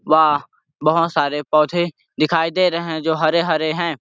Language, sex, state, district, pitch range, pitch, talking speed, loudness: Hindi, male, Chhattisgarh, Sarguja, 155-170 Hz, 160 Hz, 210 wpm, -18 LUFS